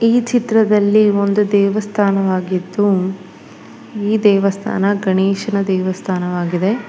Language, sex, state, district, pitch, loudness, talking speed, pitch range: Kannada, female, Karnataka, Bangalore, 200 Hz, -16 LUFS, 70 wpm, 190-210 Hz